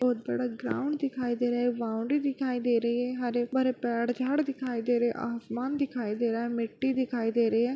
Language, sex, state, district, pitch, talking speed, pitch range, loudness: Hindi, female, Bihar, Bhagalpur, 245 Hz, 215 wpm, 235-260 Hz, -29 LUFS